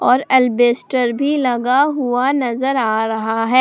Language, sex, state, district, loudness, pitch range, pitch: Hindi, female, Jharkhand, Palamu, -16 LUFS, 240-270 Hz, 250 Hz